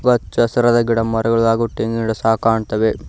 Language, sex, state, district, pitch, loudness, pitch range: Kannada, male, Karnataka, Koppal, 115 Hz, -17 LUFS, 110-115 Hz